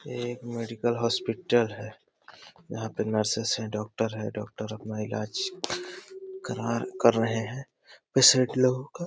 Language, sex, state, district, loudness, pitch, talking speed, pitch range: Hindi, male, Uttar Pradesh, Deoria, -27 LUFS, 115 Hz, 140 wpm, 110-130 Hz